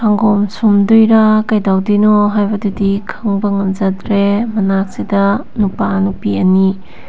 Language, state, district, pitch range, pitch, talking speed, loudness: Manipuri, Manipur, Imphal West, 195-215 Hz, 205 Hz, 95 wpm, -13 LUFS